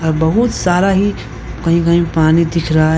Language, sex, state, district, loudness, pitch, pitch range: Hindi, male, Jharkhand, Deoghar, -14 LUFS, 170 Hz, 160-175 Hz